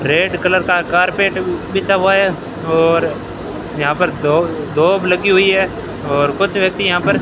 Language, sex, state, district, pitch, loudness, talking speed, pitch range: Hindi, male, Rajasthan, Bikaner, 180 Hz, -15 LUFS, 175 wpm, 165-190 Hz